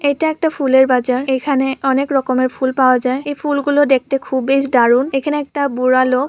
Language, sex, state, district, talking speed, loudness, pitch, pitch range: Bengali, female, West Bengal, Purulia, 180 wpm, -15 LUFS, 270 Hz, 255-285 Hz